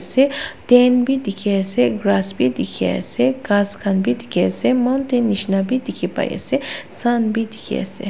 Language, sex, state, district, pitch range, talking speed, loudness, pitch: Nagamese, female, Nagaland, Dimapur, 195-250 Hz, 180 wpm, -18 LUFS, 220 Hz